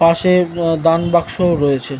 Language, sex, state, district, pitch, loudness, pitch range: Bengali, male, West Bengal, North 24 Parganas, 165 Hz, -15 LUFS, 165-175 Hz